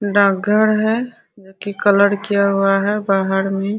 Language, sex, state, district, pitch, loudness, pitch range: Hindi, female, Bihar, Araria, 200 Hz, -16 LUFS, 195-210 Hz